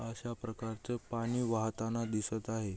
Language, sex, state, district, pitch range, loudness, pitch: Marathi, male, Maharashtra, Aurangabad, 110-115 Hz, -37 LUFS, 115 Hz